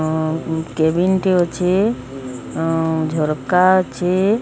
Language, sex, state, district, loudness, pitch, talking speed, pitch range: Odia, female, Odisha, Sambalpur, -18 LUFS, 165 Hz, 110 wpm, 155-185 Hz